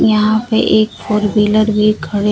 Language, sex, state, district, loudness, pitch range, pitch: Hindi, female, Bihar, Kaimur, -13 LUFS, 210-215 Hz, 210 Hz